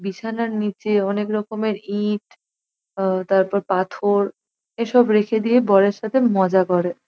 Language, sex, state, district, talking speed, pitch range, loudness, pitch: Bengali, female, West Bengal, North 24 Parganas, 125 wpm, 195-220 Hz, -20 LUFS, 205 Hz